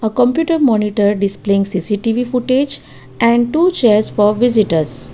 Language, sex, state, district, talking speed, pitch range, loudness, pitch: English, female, Gujarat, Valsad, 130 wpm, 205-250 Hz, -15 LUFS, 220 Hz